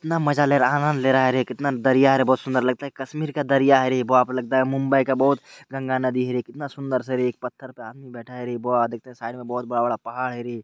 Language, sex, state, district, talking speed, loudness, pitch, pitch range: Maithili, male, Bihar, Purnia, 320 wpm, -22 LUFS, 130 Hz, 125-135 Hz